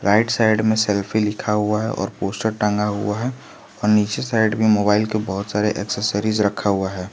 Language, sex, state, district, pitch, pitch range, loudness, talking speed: Hindi, male, Jharkhand, Garhwa, 105 Hz, 100-110 Hz, -20 LUFS, 200 wpm